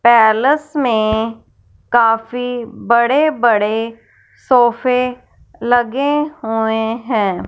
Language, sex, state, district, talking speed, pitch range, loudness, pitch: Hindi, female, Punjab, Fazilka, 70 wpm, 225-250 Hz, -15 LUFS, 235 Hz